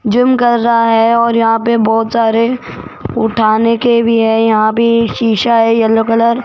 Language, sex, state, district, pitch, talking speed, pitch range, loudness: Hindi, female, Rajasthan, Jaipur, 230 Hz, 185 wpm, 225-235 Hz, -11 LUFS